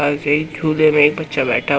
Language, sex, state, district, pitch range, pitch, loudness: Hindi, male, Madhya Pradesh, Umaria, 145-155 Hz, 150 Hz, -16 LUFS